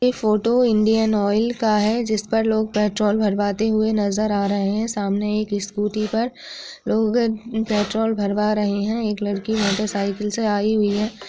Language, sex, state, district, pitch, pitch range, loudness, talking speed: Hindi, female, Uttar Pradesh, Gorakhpur, 215 Hz, 205-220 Hz, -21 LUFS, 170 wpm